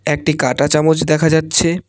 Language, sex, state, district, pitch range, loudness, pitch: Bengali, male, West Bengal, Cooch Behar, 150-160 Hz, -14 LUFS, 155 Hz